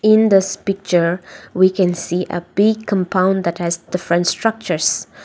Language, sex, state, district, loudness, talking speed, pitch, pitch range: English, female, Nagaland, Dimapur, -17 LUFS, 150 wpm, 185 Hz, 175-195 Hz